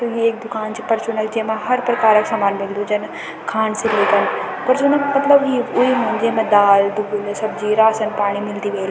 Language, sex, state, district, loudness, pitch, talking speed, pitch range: Garhwali, female, Uttarakhand, Tehri Garhwal, -17 LUFS, 220 Hz, 195 wpm, 205-235 Hz